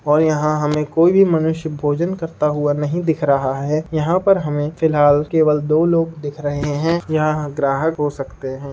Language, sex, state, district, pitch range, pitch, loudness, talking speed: Hindi, male, Uttar Pradesh, Gorakhpur, 145-160 Hz, 150 Hz, -18 LUFS, 190 wpm